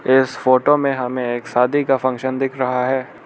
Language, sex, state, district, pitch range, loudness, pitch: Hindi, male, Arunachal Pradesh, Lower Dibang Valley, 125-135 Hz, -18 LUFS, 130 Hz